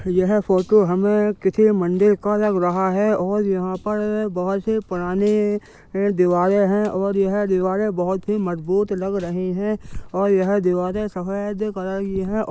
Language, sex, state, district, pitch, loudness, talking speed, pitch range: Hindi, male, Uttar Pradesh, Jyotiba Phule Nagar, 195 Hz, -20 LUFS, 160 wpm, 185-210 Hz